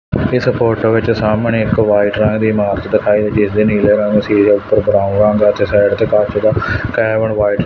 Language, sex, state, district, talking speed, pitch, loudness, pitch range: Punjabi, male, Punjab, Fazilka, 205 wpm, 105 Hz, -13 LUFS, 105-110 Hz